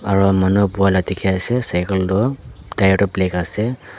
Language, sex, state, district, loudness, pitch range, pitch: Nagamese, male, Nagaland, Dimapur, -18 LUFS, 95-100 Hz, 95 Hz